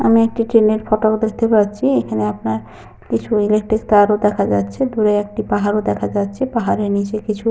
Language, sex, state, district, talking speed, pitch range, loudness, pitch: Bengali, female, Jharkhand, Sahebganj, 190 wpm, 200-220 Hz, -17 LUFS, 210 Hz